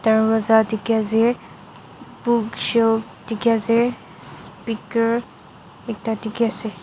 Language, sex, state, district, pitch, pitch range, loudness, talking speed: Nagamese, female, Nagaland, Dimapur, 225 Hz, 220-230 Hz, -17 LUFS, 70 wpm